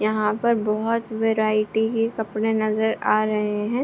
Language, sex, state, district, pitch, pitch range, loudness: Hindi, female, Bihar, Begusarai, 220 Hz, 215-225 Hz, -22 LUFS